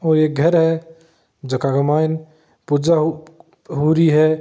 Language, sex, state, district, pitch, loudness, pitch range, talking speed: Marwari, male, Rajasthan, Nagaur, 155 Hz, -17 LUFS, 150-165 Hz, 150 wpm